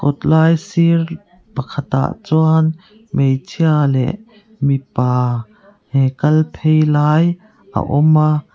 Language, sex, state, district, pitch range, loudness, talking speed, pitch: Mizo, female, Mizoram, Aizawl, 140-170 Hz, -16 LUFS, 100 wpm, 155 Hz